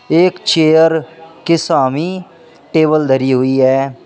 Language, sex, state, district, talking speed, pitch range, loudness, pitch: Hindi, male, Uttar Pradesh, Shamli, 120 wpm, 135-165 Hz, -13 LUFS, 160 Hz